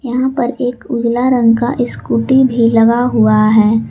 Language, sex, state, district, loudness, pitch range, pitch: Hindi, female, Jharkhand, Garhwa, -12 LUFS, 225-250 Hz, 240 Hz